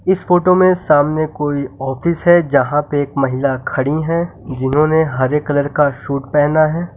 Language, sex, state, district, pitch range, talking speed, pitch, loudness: Hindi, male, Uttar Pradesh, Lucknow, 140-165 Hz, 170 wpm, 150 Hz, -15 LUFS